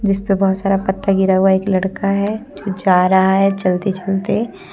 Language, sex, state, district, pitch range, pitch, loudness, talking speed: Hindi, female, Jharkhand, Deoghar, 190-195 Hz, 195 Hz, -16 LUFS, 205 wpm